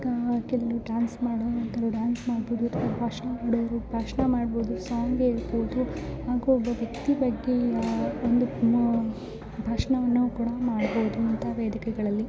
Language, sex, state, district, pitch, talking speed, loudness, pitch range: Kannada, female, Karnataka, Bellary, 235 Hz, 100 wpm, -27 LUFS, 230-245 Hz